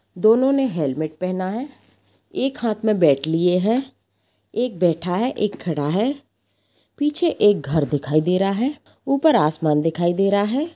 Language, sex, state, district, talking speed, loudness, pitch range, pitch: Hindi, female, Bihar, Darbhanga, 165 wpm, -20 LUFS, 165-260 Hz, 200 Hz